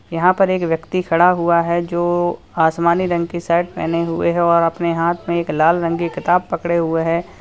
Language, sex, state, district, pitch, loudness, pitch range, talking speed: Hindi, male, Uttar Pradesh, Lalitpur, 170 Hz, -17 LUFS, 165-175 Hz, 220 wpm